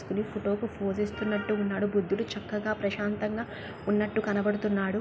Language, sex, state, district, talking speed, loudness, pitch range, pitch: Telugu, female, Andhra Pradesh, Krishna, 95 wpm, -30 LUFS, 200-210 Hz, 205 Hz